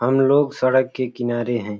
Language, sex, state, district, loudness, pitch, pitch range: Hindi, male, Uttar Pradesh, Ghazipur, -19 LUFS, 130 Hz, 120-135 Hz